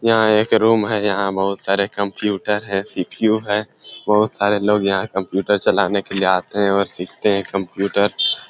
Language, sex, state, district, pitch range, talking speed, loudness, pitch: Hindi, male, Jharkhand, Sahebganj, 100-105 Hz, 175 wpm, -18 LUFS, 100 Hz